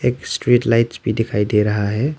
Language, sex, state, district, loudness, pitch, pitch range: Hindi, male, Arunachal Pradesh, Lower Dibang Valley, -18 LUFS, 115 Hz, 105-120 Hz